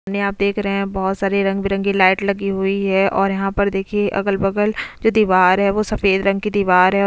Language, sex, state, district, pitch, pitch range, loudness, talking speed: Hindi, female, Goa, North and South Goa, 195 Hz, 195-200 Hz, -17 LUFS, 240 wpm